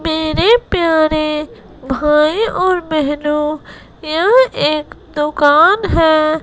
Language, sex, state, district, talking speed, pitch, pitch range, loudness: Hindi, female, Gujarat, Gandhinagar, 85 wpm, 310 Hz, 300-350 Hz, -14 LUFS